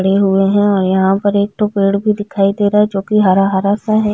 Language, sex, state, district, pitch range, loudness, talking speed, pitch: Hindi, female, Chhattisgarh, Jashpur, 195-205 Hz, -13 LUFS, 305 wpm, 200 Hz